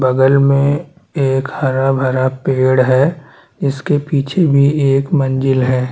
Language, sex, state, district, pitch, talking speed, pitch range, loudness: Hindi, male, Chhattisgarh, Bastar, 135 Hz, 120 wpm, 130-145 Hz, -14 LUFS